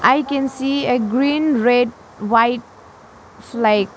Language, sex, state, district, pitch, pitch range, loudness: English, female, Arunachal Pradesh, Lower Dibang Valley, 245 Hz, 230-275 Hz, -18 LUFS